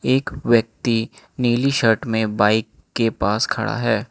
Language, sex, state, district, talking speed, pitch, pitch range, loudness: Hindi, male, Manipur, Imphal West, 145 wpm, 115 Hz, 110-125 Hz, -20 LUFS